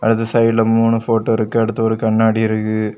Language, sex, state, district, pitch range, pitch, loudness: Tamil, male, Tamil Nadu, Kanyakumari, 110-115 Hz, 115 Hz, -16 LUFS